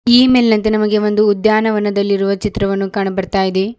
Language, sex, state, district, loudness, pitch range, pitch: Kannada, female, Karnataka, Bidar, -14 LUFS, 195-215 Hz, 210 Hz